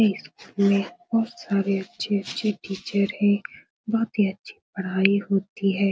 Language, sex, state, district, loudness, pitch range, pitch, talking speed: Hindi, female, Bihar, Supaul, -24 LUFS, 195-210 Hz, 200 Hz, 140 wpm